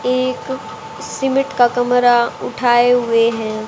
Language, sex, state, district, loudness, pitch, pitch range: Hindi, female, Haryana, Charkhi Dadri, -16 LUFS, 245 Hz, 235-250 Hz